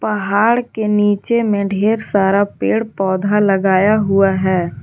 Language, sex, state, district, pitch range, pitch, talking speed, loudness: Hindi, female, Jharkhand, Garhwa, 195-215 Hz, 200 Hz, 135 wpm, -15 LUFS